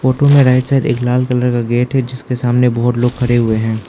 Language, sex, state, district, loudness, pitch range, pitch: Hindi, male, Arunachal Pradesh, Lower Dibang Valley, -14 LUFS, 120-130 Hz, 125 Hz